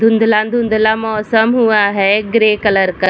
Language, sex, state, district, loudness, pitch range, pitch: Hindi, female, Bihar, Vaishali, -13 LUFS, 205-225 Hz, 220 Hz